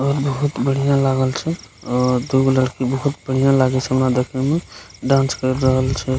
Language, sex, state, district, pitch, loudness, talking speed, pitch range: Maithili, male, Bihar, Begusarai, 130 Hz, -18 LUFS, 185 wpm, 130-135 Hz